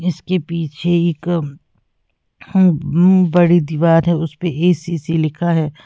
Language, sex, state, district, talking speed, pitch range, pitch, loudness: Hindi, female, Uttar Pradesh, Lalitpur, 100 wpm, 160-175 Hz, 170 Hz, -16 LUFS